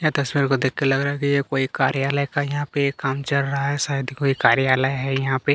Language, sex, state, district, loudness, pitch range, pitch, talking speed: Hindi, male, Chhattisgarh, Kabirdham, -21 LUFS, 135-140 Hz, 140 Hz, 260 wpm